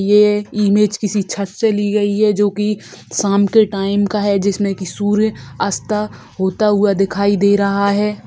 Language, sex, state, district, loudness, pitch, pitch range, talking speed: Hindi, female, Bihar, Sitamarhi, -16 LUFS, 205 Hz, 200-210 Hz, 180 wpm